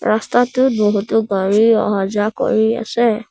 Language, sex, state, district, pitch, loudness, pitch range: Assamese, male, Assam, Sonitpur, 220 Hz, -16 LUFS, 210-230 Hz